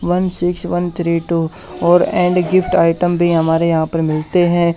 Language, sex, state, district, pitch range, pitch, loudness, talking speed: Hindi, male, Haryana, Charkhi Dadri, 165-180 Hz, 175 Hz, -15 LUFS, 190 wpm